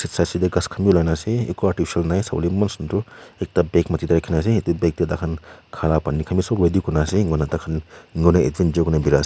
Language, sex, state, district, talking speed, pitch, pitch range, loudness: Nagamese, male, Nagaland, Kohima, 225 wpm, 85 Hz, 80-95 Hz, -20 LUFS